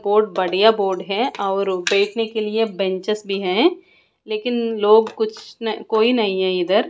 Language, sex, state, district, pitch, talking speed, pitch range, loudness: Hindi, female, Bihar, Katihar, 215 Hz, 165 wpm, 195-225 Hz, -19 LUFS